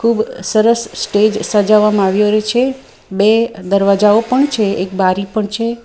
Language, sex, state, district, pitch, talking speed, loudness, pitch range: Gujarati, female, Gujarat, Valsad, 215 Hz, 155 wpm, -14 LUFS, 200-230 Hz